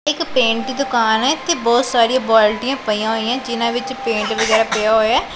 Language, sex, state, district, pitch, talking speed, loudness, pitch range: Punjabi, female, Punjab, Pathankot, 235 Hz, 190 wpm, -16 LUFS, 220-260 Hz